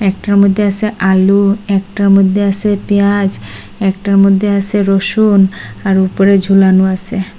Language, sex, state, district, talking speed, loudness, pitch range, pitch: Bengali, female, Assam, Hailakandi, 130 wpm, -11 LUFS, 195-200 Hz, 195 Hz